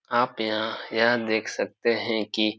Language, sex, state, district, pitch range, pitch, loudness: Hindi, male, Bihar, Supaul, 110-115 Hz, 110 Hz, -25 LUFS